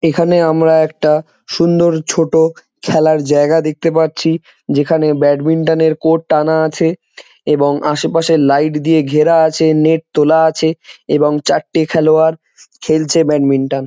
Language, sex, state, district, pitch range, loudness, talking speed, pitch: Bengali, male, West Bengal, Jhargram, 150-160 Hz, -13 LUFS, 130 wpm, 160 Hz